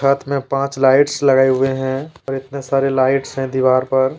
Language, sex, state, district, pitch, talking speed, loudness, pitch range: Hindi, male, Jharkhand, Deoghar, 135 Hz, 200 wpm, -17 LUFS, 130-140 Hz